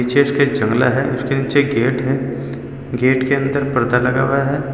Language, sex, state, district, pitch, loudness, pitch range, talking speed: Hindi, male, Uttar Pradesh, Saharanpur, 135 Hz, -17 LUFS, 125-140 Hz, 205 wpm